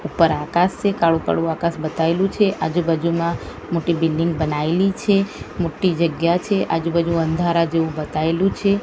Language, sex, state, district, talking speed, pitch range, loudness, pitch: Gujarati, female, Gujarat, Gandhinagar, 155 wpm, 165-185 Hz, -20 LUFS, 170 Hz